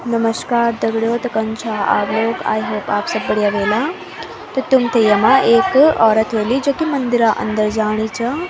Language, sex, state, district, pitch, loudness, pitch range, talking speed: Garhwali, female, Uttarakhand, Tehri Garhwal, 230 Hz, -16 LUFS, 220-255 Hz, 170 wpm